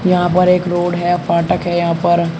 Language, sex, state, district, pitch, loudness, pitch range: Hindi, male, Uttar Pradesh, Shamli, 175 Hz, -15 LUFS, 170-180 Hz